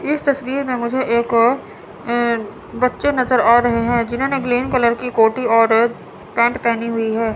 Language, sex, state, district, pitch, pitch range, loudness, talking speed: Hindi, female, Chandigarh, Chandigarh, 240 Hz, 230-255 Hz, -17 LUFS, 170 wpm